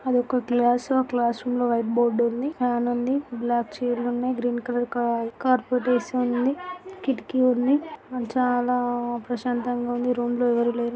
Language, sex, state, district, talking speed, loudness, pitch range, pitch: Telugu, female, Andhra Pradesh, Guntur, 165 wpm, -24 LUFS, 240-255 Hz, 245 Hz